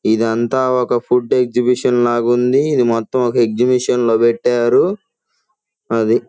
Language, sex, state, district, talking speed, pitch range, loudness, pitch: Telugu, male, Andhra Pradesh, Guntur, 105 wpm, 115-125 Hz, -15 LUFS, 120 Hz